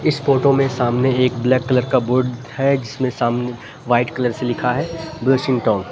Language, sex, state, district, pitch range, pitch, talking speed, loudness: Hindi, male, Uttar Pradesh, Lucknow, 120-135 Hz, 125 Hz, 205 wpm, -18 LUFS